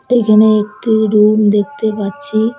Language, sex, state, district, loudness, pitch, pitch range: Bengali, female, West Bengal, Cooch Behar, -12 LUFS, 215 Hz, 210-225 Hz